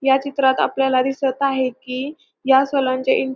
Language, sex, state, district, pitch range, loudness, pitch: Marathi, female, Maharashtra, Pune, 260-275 Hz, -19 LUFS, 265 Hz